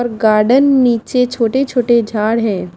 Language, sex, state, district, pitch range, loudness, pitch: Hindi, female, Haryana, Jhajjar, 220-250 Hz, -13 LUFS, 235 Hz